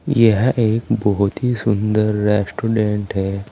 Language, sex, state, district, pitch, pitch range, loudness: Hindi, male, Uttar Pradesh, Saharanpur, 105 Hz, 105-115 Hz, -18 LUFS